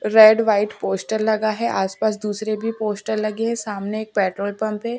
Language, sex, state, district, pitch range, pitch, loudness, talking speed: Hindi, female, Bihar, Patna, 210-220 Hz, 215 Hz, -20 LUFS, 205 wpm